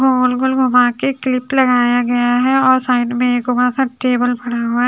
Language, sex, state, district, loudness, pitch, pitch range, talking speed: Hindi, female, Haryana, Charkhi Dadri, -15 LUFS, 250 Hz, 245-260 Hz, 210 wpm